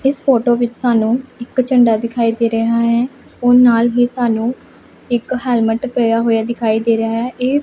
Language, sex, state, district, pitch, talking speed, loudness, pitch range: Punjabi, female, Punjab, Pathankot, 240 Hz, 180 wpm, -15 LUFS, 230-250 Hz